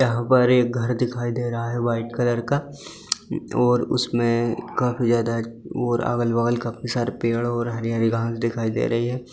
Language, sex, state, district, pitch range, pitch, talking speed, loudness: Hindi, male, Bihar, Jahanabad, 115-125 Hz, 120 Hz, 175 wpm, -23 LUFS